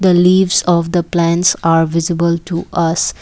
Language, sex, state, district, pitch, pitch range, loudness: English, female, Assam, Kamrup Metropolitan, 170 Hz, 165-180 Hz, -14 LUFS